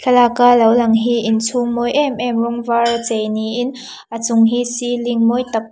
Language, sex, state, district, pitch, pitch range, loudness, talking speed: Mizo, female, Mizoram, Aizawl, 235 Hz, 230-245 Hz, -16 LUFS, 190 wpm